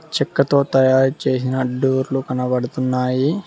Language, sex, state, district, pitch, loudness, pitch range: Telugu, male, Telangana, Mahabubabad, 130 Hz, -18 LUFS, 130-140 Hz